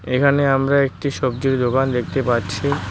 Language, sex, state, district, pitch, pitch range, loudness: Bengali, male, West Bengal, Cooch Behar, 135 Hz, 125-140 Hz, -19 LUFS